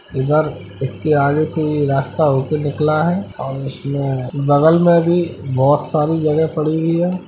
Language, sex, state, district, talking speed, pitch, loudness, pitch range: Hindi, male, Uttar Pradesh, Hamirpur, 165 wpm, 150 Hz, -17 LUFS, 135-160 Hz